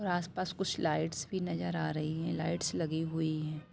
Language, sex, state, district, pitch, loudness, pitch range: Hindi, female, Jharkhand, Sahebganj, 165 Hz, -35 LUFS, 155-175 Hz